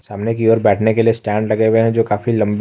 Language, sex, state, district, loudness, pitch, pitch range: Hindi, male, Jharkhand, Ranchi, -15 LUFS, 110 Hz, 105-115 Hz